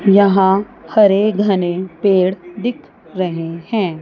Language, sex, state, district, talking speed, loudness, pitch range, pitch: Hindi, female, Chandigarh, Chandigarh, 105 wpm, -16 LUFS, 180-205 Hz, 195 Hz